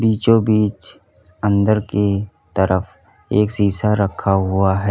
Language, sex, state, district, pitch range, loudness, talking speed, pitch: Hindi, male, Uttar Pradesh, Lalitpur, 95-105 Hz, -18 LUFS, 110 wpm, 100 Hz